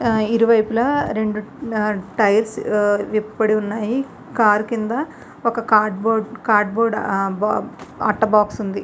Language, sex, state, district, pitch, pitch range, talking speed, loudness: Telugu, female, Andhra Pradesh, Visakhapatnam, 215 Hz, 210-230 Hz, 110 wpm, -19 LUFS